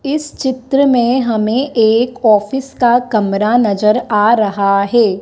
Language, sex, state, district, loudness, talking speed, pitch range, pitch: Hindi, female, Madhya Pradesh, Dhar, -13 LUFS, 140 wpm, 210-255 Hz, 235 Hz